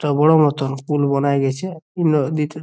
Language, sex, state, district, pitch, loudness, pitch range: Bengali, male, West Bengal, Jhargram, 150 Hz, -18 LUFS, 140-155 Hz